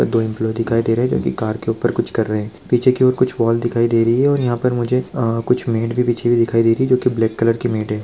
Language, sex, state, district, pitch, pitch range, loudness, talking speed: Hindi, male, Rajasthan, Churu, 115 Hz, 115-125 Hz, -17 LUFS, 335 wpm